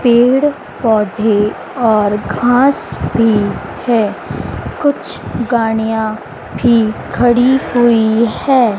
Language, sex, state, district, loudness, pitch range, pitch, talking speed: Hindi, female, Madhya Pradesh, Dhar, -14 LUFS, 220-245 Hz, 230 Hz, 75 wpm